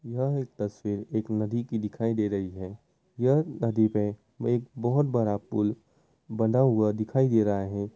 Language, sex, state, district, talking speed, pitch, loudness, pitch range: Hindi, male, Uttar Pradesh, Muzaffarnagar, 165 wpm, 110 Hz, -27 LUFS, 105-120 Hz